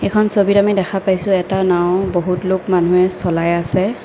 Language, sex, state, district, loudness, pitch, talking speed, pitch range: Assamese, female, Assam, Kamrup Metropolitan, -16 LUFS, 185 Hz, 180 wpm, 180-195 Hz